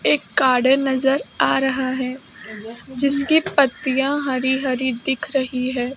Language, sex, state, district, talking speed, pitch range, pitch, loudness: Hindi, male, Maharashtra, Mumbai Suburban, 130 wpm, 255-275 Hz, 265 Hz, -19 LUFS